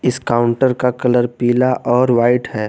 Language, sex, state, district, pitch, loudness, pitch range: Hindi, male, Jharkhand, Garhwa, 125 Hz, -15 LUFS, 120-125 Hz